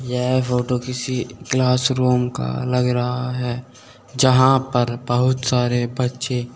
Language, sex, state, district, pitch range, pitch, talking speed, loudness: Hindi, male, Uttar Pradesh, Saharanpur, 125-130 Hz, 125 Hz, 130 wpm, -20 LUFS